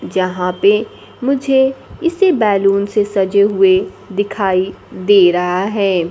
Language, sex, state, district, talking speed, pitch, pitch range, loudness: Hindi, female, Bihar, Kaimur, 120 wpm, 200 Hz, 185-210 Hz, -14 LUFS